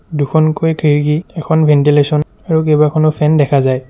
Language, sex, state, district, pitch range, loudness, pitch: Assamese, male, Assam, Sonitpur, 145-155 Hz, -13 LUFS, 150 Hz